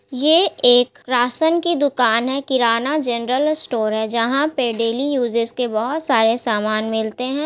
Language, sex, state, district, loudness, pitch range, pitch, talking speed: Hindi, female, Bihar, Gaya, -18 LUFS, 230-285 Hz, 245 Hz, 170 wpm